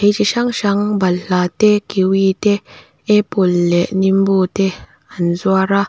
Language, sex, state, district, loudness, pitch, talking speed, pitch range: Mizo, female, Mizoram, Aizawl, -15 LUFS, 195 Hz, 155 wpm, 185-205 Hz